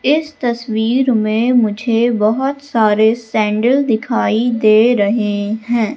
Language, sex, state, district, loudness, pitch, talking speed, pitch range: Hindi, female, Madhya Pradesh, Katni, -15 LUFS, 230 Hz, 110 wpm, 215-245 Hz